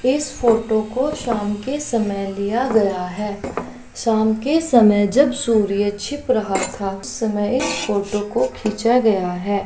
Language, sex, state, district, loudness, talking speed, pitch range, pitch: Hindi, female, Uttar Pradesh, Jalaun, -19 LUFS, 155 wpm, 205-250 Hz, 220 Hz